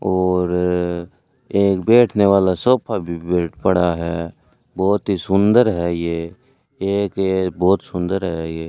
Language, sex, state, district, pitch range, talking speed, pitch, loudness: Hindi, male, Rajasthan, Bikaner, 85-100 Hz, 140 wpm, 95 Hz, -18 LUFS